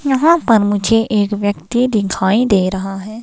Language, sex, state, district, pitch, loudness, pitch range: Hindi, female, Himachal Pradesh, Shimla, 210 Hz, -15 LUFS, 195-235 Hz